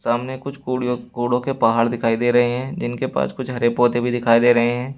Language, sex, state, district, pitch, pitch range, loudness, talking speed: Hindi, male, Uttar Pradesh, Shamli, 120 Hz, 120-125 Hz, -20 LUFS, 230 wpm